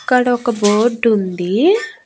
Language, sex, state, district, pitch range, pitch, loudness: Telugu, female, Andhra Pradesh, Annamaya, 210-255 Hz, 240 Hz, -15 LUFS